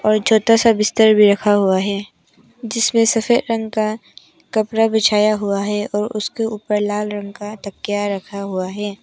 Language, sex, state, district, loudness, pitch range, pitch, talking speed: Hindi, female, Arunachal Pradesh, Papum Pare, -17 LUFS, 205-220 Hz, 210 Hz, 175 wpm